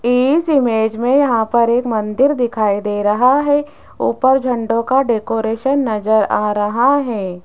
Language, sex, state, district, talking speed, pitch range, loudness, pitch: Hindi, female, Rajasthan, Jaipur, 155 wpm, 220-265 Hz, -15 LUFS, 235 Hz